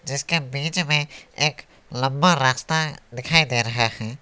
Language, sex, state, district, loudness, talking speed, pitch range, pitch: Hindi, male, West Bengal, Alipurduar, -21 LUFS, 140 wpm, 125-160 Hz, 140 Hz